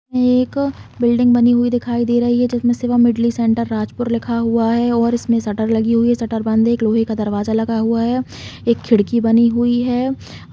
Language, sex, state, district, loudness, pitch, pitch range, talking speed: Hindi, female, Chhattisgarh, Balrampur, -16 LUFS, 235 Hz, 230-240 Hz, 220 wpm